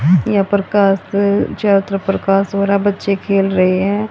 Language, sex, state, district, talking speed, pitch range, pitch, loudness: Hindi, female, Haryana, Rohtak, 160 wpm, 195-200 Hz, 200 Hz, -15 LUFS